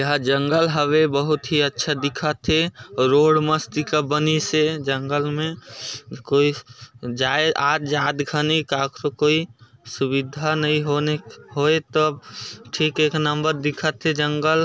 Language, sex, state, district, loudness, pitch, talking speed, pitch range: Chhattisgarhi, male, Chhattisgarh, Sarguja, -21 LUFS, 150 Hz, 115 wpm, 140-155 Hz